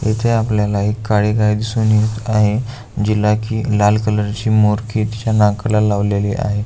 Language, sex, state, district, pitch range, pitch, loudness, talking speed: Marathi, male, Maharashtra, Aurangabad, 105-110 Hz, 105 Hz, -16 LUFS, 160 wpm